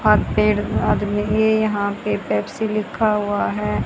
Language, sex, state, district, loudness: Hindi, female, Haryana, Charkhi Dadri, -20 LUFS